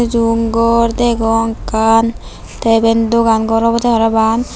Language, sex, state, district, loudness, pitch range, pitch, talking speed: Chakma, female, Tripura, Unakoti, -13 LUFS, 225-230 Hz, 230 Hz, 130 wpm